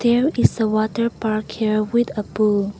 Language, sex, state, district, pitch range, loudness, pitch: English, female, Nagaland, Kohima, 215-235 Hz, -20 LUFS, 215 Hz